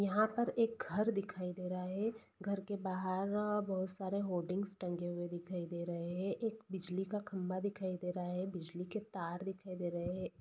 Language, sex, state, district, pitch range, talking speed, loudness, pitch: Hindi, female, Jharkhand, Sahebganj, 180-205 Hz, 205 wpm, -40 LUFS, 190 Hz